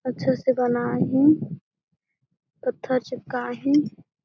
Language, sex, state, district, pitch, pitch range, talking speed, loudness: Chhattisgarhi, female, Chhattisgarh, Jashpur, 255 Hz, 250-285 Hz, 100 wpm, -23 LUFS